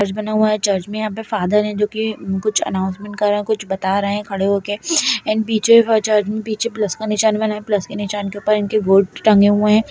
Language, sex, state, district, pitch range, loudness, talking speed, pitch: Kumaoni, female, Uttarakhand, Tehri Garhwal, 200-215 Hz, -17 LUFS, 265 wpm, 210 Hz